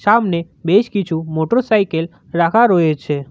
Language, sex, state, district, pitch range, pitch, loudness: Bengali, male, West Bengal, Cooch Behar, 160-205 Hz, 170 Hz, -16 LUFS